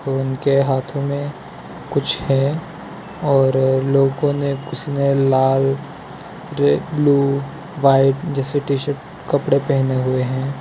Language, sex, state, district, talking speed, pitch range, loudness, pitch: Hindi, male, Gujarat, Valsad, 115 wpm, 135-145 Hz, -18 LUFS, 140 Hz